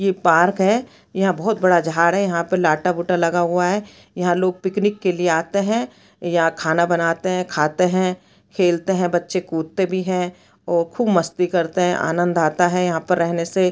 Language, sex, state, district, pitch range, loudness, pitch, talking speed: Hindi, female, Chhattisgarh, Bastar, 170-185 Hz, -19 LUFS, 180 Hz, 200 wpm